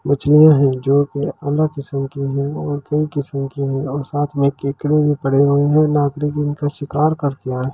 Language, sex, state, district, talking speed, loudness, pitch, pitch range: Hindi, male, Delhi, New Delhi, 210 wpm, -17 LUFS, 145 Hz, 140-150 Hz